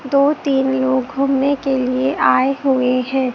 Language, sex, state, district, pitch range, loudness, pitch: Hindi, female, Chhattisgarh, Raipur, 255-275 Hz, -17 LUFS, 265 Hz